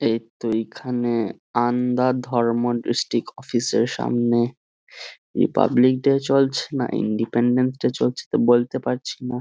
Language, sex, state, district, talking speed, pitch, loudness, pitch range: Bengali, male, West Bengal, Jhargram, 110 wpm, 120 Hz, -22 LUFS, 115-125 Hz